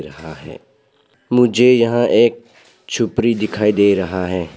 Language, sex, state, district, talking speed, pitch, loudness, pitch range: Hindi, male, Arunachal Pradesh, Papum Pare, 130 wpm, 115 Hz, -15 LUFS, 105-120 Hz